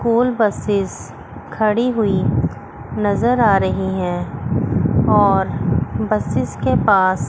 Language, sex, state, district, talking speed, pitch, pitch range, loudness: Hindi, female, Chandigarh, Chandigarh, 100 wpm, 205 Hz, 185-220 Hz, -18 LUFS